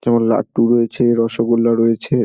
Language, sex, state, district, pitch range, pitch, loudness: Bengali, male, West Bengal, Dakshin Dinajpur, 115-120 Hz, 115 Hz, -16 LUFS